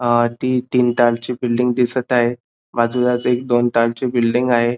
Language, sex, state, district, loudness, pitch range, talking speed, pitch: Marathi, male, Maharashtra, Dhule, -18 LUFS, 120-125 Hz, 165 wpm, 120 Hz